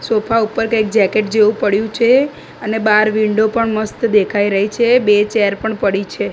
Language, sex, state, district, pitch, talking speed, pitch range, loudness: Gujarati, female, Gujarat, Gandhinagar, 215 Hz, 190 wpm, 210-225 Hz, -15 LUFS